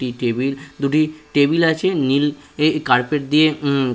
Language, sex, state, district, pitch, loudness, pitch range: Bengali, male, West Bengal, Purulia, 145 Hz, -18 LUFS, 135-155 Hz